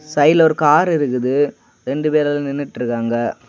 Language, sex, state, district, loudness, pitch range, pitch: Tamil, male, Tamil Nadu, Kanyakumari, -17 LUFS, 125-155 Hz, 145 Hz